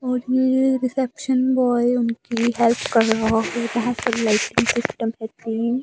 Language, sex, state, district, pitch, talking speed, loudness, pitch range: Hindi, female, Himachal Pradesh, Shimla, 240 Hz, 145 wpm, -20 LUFS, 230-255 Hz